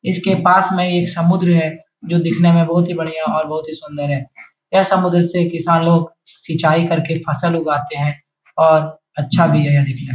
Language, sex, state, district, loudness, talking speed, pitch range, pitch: Hindi, male, Bihar, Jahanabad, -16 LUFS, 190 wpm, 155-175 Hz, 165 Hz